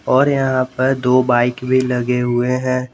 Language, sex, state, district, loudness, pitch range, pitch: Hindi, male, Jharkhand, Garhwa, -16 LUFS, 125-130 Hz, 130 Hz